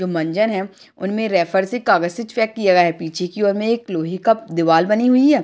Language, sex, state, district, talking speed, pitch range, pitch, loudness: Hindi, female, Maharashtra, Dhule, 245 wpm, 175-225 Hz, 190 Hz, -18 LUFS